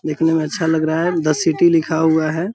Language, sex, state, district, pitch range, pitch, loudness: Hindi, male, Bihar, Purnia, 160-165 Hz, 160 Hz, -17 LUFS